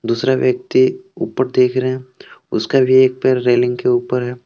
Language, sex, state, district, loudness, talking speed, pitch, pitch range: Hindi, male, Jharkhand, Deoghar, -16 LUFS, 190 wpm, 130 Hz, 125-130 Hz